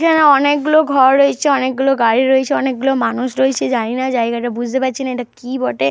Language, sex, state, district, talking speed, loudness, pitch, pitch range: Bengali, female, Jharkhand, Jamtara, 185 wpm, -15 LUFS, 260 Hz, 245-275 Hz